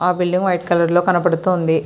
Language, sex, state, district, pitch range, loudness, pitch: Telugu, female, Andhra Pradesh, Srikakulam, 175-180 Hz, -17 LUFS, 175 Hz